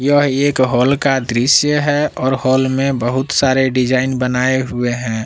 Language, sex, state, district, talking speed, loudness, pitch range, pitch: Hindi, male, Jharkhand, Palamu, 170 wpm, -15 LUFS, 125-140 Hz, 130 Hz